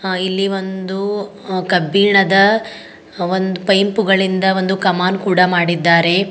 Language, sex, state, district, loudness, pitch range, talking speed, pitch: Kannada, female, Karnataka, Bidar, -15 LUFS, 185-195 Hz, 115 wpm, 190 Hz